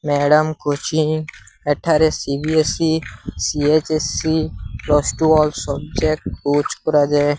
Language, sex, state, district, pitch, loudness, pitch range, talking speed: Odia, male, Odisha, Sambalpur, 150 Hz, -18 LUFS, 145-155 Hz, 90 wpm